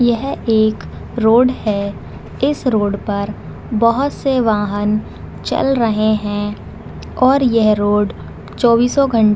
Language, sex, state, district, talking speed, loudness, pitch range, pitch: Hindi, female, Chhattisgarh, Raigarh, 120 wpm, -16 LUFS, 210-250 Hz, 220 Hz